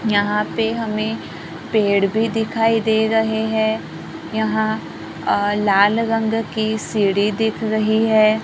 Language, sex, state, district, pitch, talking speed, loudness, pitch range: Hindi, female, Maharashtra, Gondia, 220 Hz, 130 wpm, -19 LUFS, 210-225 Hz